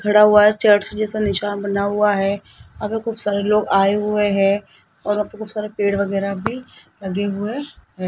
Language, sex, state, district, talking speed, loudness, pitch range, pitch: Hindi, male, Rajasthan, Jaipur, 210 wpm, -19 LUFS, 200-210 Hz, 205 Hz